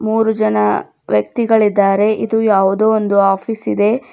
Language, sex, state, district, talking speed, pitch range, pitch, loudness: Kannada, female, Karnataka, Bidar, 115 wpm, 195-220 Hz, 210 Hz, -15 LUFS